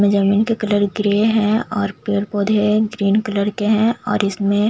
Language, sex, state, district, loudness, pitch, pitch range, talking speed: Hindi, female, Chhattisgarh, Jashpur, -18 LUFS, 205 Hz, 200-215 Hz, 190 wpm